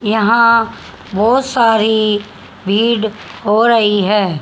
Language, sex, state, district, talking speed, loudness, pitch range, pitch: Hindi, female, Haryana, Charkhi Dadri, 95 wpm, -13 LUFS, 210-230 Hz, 220 Hz